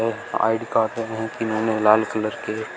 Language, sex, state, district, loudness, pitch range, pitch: Hindi, male, Uttar Pradesh, Shamli, -22 LUFS, 110-115 Hz, 110 Hz